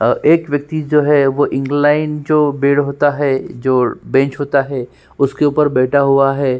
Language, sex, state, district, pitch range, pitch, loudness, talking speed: Hindi, male, Uttarakhand, Tehri Garhwal, 135-150 Hz, 140 Hz, -15 LUFS, 180 wpm